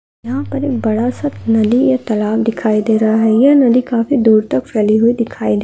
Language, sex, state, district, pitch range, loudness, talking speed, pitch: Hindi, female, Andhra Pradesh, Krishna, 220-255 Hz, -14 LUFS, 225 wpm, 230 Hz